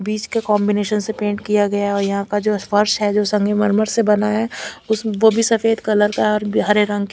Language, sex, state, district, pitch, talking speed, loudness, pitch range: Hindi, female, Chandigarh, Chandigarh, 210 Hz, 220 wpm, -18 LUFS, 205-215 Hz